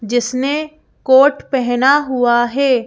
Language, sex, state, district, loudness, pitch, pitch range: Hindi, female, Madhya Pradesh, Bhopal, -14 LUFS, 265 Hz, 245-280 Hz